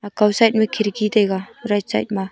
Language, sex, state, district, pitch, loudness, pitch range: Wancho, female, Arunachal Pradesh, Longding, 210 Hz, -19 LUFS, 205-215 Hz